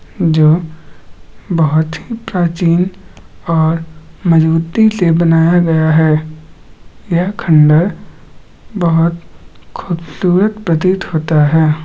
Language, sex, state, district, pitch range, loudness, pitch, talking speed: Magahi, male, Bihar, Gaya, 160-180 Hz, -13 LUFS, 165 Hz, 90 wpm